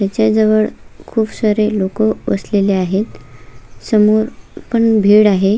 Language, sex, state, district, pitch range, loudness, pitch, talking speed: Marathi, female, Maharashtra, Sindhudurg, 195-220 Hz, -14 LUFS, 210 Hz, 120 wpm